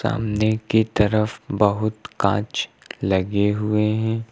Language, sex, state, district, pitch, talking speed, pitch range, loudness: Hindi, male, Uttar Pradesh, Lucknow, 105 Hz, 110 wpm, 105-110 Hz, -21 LUFS